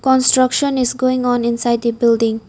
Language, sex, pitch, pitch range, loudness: English, female, 245 Hz, 235-255 Hz, -15 LUFS